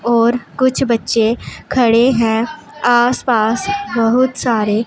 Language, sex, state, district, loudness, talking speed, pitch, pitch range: Hindi, female, Punjab, Pathankot, -15 LUFS, 100 wpm, 240 Hz, 230-255 Hz